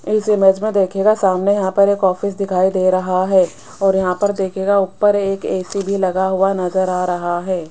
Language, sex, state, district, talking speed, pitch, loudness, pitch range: Hindi, female, Rajasthan, Jaipur, 200 wpm, 190 Hz, -16 LUFS, 185-200 Hz